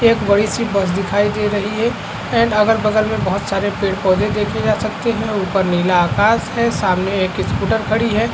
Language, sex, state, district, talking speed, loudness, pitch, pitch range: Hindi, male, Chhattisgarh, Korba, 195 wpm, -17 LUFS, 210 Hz, 195-225 Hz